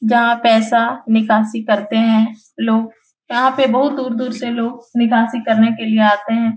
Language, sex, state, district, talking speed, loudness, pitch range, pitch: Hindi, female, Bihar, Jahanabad, 175 wpm, -16 LUFS, 225-240 Hz, 230 Hz